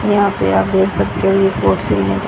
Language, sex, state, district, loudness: Hindi, female, Haryana, Jhajjar, -15 LUFS